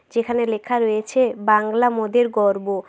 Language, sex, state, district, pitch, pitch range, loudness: Bengali, female, West Bengal, Jhargram, 225 Hz, 215-240 Hz, -19 LUFS